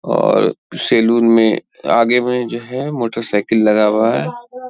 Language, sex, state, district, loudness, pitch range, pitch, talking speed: Hindi, male, Bihar, Bhagalpur, -15 LUFS, 115-125 Hz, 115 Hz, 140 wpm